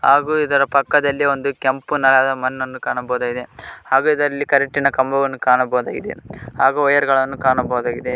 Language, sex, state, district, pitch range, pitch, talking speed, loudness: Kannada, male, Karnataka, Koppal, 130-140 Hz, 135 Hz, 130 wpm, -17 LUFS